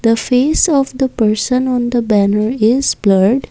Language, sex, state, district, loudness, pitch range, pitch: English, female, Assam, Kamrup Metropolitan, -14 LUFS, 215-260 Hz, 240 Hz